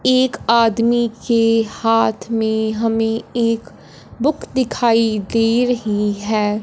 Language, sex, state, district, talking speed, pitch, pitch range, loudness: Hindi, female, Punjab, Fazilka, 110 wpm, 225 Hz, 220-235 Hz, -17 LUFS